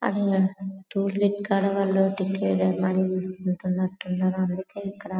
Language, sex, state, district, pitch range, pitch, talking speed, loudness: Telugu, female, Telangana, Karimnagar, 185-195 Hz, 190 Hz, 150 wpm, -25 LUFS